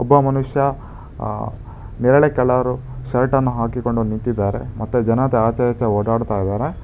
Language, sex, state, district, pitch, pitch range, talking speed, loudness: Kannada, male, Karnataka, Bangalore, 120 Hz, 110-130 Hz, 125 wpm, -19 LUFS